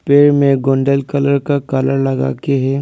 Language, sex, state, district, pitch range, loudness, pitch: Hindi, male, Arunachal Pradesh, Lower Dibang Valley, 135-140 Hz, -14 LUFS, 140 Hz